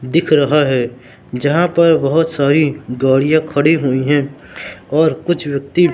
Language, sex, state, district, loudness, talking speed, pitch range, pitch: Hindi, male, Madhya Pradesh, Katni, -14 LUFS, 140 wpm, 135-160 Hz, 145 Hz